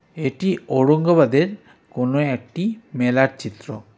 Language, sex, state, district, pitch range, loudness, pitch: Bengali, male, West Bengal, Darjeeling, 125-170 Hz, -20 LUFS, 135 Hz